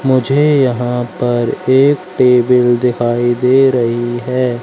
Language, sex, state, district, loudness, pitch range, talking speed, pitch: Hindi, male, Madhya Pradesh, Katni, -13 LUFS, 120-130 Hz, 115 wpm, 125 Hz